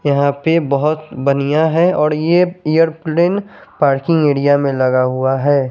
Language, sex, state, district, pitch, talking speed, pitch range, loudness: Hindi, male, Chandigarh, Chandigarh, 150 Hz, 155 wpm, 140-165 Hz, -15 LUFS